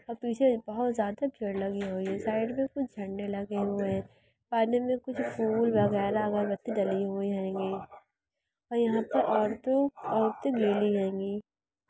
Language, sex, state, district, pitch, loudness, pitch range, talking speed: Hindi, female, Andhra Pradesh, Chittoor, 215 Hz, -30 LUFS, 200-235 Hz, 165 wpm